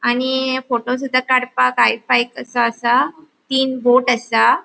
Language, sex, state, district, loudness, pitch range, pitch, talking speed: Konkani, female, Goa, North and South Goa, -17 LUFS, 240-260 Hz, 250 Hz, 115 wpm